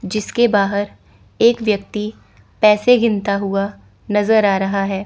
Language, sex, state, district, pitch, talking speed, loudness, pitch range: Hindi, female, Chandigarh, Chandigarh, 205 Hz, 130 wpm, -17 LUFS, 195-215 Hz